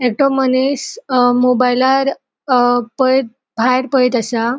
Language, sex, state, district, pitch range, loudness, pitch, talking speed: Konkani, female, Goa, North and South Goa, 245-265 Hz, -15 LUFS, 255 Hz, 115 wpm